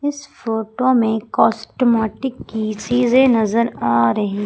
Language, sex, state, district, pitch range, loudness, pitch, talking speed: Hindi, female, Madhya Pradesh, Umaria, 215-250 Hz, -18 LUFS, 225 Hz, 120 wpm